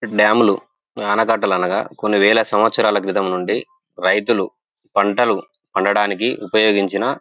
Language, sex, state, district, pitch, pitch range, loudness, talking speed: Telugu, male, Telangana, Nalgonda, 105 Hz, 100-115 Hz, -17 LUFS, 110 wpm